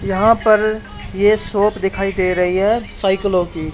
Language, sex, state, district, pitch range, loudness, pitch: Hindi, male, Haryana, Charkhi Dadri, 190-215 Hz, -16 LUFS, 195 Hz